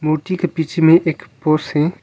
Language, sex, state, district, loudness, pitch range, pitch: Hindi, male, Arunachal Pradesh, Longding, -17 LUFS, 155-170 Hz, 160 Hz